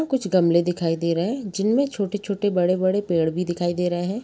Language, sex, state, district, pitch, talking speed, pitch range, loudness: Hindi, female, Chhattisgarh, Balrampur, 185 Hz, 240 wpm, 175-205 Hz, -22 LUFS